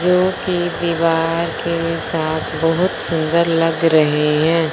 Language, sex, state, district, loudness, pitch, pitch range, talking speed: Hindi, male, Punjab, Fazilka, -17 LUFS, 165 Hz, 160-170 Hz, 125 wpm